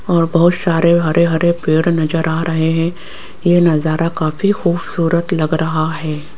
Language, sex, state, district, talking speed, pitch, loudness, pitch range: Hindi, female, Rajasthan, Jaipur, 160 wpm, 165 Hz, -15 LUFS, 160-170 Hz